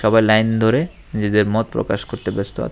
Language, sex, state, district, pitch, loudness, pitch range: Bengali, male, Tripura, West Tripura, 110 Hz, -18 LUFS, 105-115 Hz